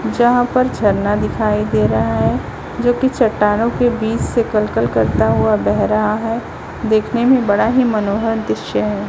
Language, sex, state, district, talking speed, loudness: Hindi, female, Chhattisgarh, Raipur, 170 wpm, -16 LUFS